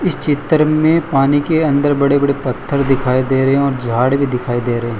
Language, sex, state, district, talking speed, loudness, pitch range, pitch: Hindi, male, Gujarat, Valsad, 240 wpm, -15 LUFS, 130-145 Hz, 140 Hz